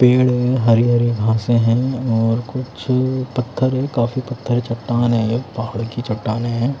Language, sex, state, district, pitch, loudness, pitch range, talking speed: Hindi, male, Odisha, Khordha, 120 Hz, -18 LUFS, 115-130 Hz, 170 wpm